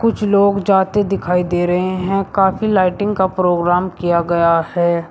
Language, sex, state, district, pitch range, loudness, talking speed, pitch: Hindi, male, Uttar Pradesh, Shamli, 175-195 Hz, -16 LUFS, 165 wpm, 185 Hz